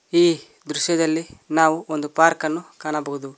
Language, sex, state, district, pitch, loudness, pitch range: Kannada, male, Karnataka, Koppal, 160 Hz, -21 LUFS, 150-165 Hz